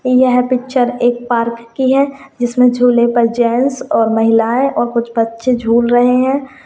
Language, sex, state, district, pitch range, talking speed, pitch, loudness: Hindi, female, Rajasthan, Churu, 235-260 Hz, 160 wpm, 245 Hz, -13 LUFS